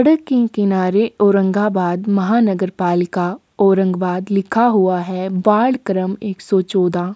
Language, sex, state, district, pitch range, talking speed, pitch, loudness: Hindi, female, Maharashtra, Aurangabad, 185-210 Hz, 125 wpm, 195 Hz, -16 LUFS